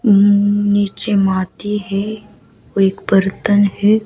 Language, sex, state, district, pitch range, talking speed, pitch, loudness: Hindi, female, Bihar, West Champaran, 195-205 Hz, 105 wpm, 205 Hz, -15 LUFS